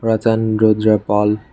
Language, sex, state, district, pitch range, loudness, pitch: Bengali, male, Tripura, West Tripura, 105-110 Hz, -15 LUFS, 110 Hz